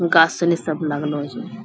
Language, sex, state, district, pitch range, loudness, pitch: Angika, female, Bihar, Bhagalpur, 150-170 Hz, -20 LUFS, 165 Hz